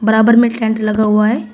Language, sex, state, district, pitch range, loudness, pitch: Hindi, female, Uttar Pradesh, Shamli, 215-230 Hz, -13 LUFS, 220 Hz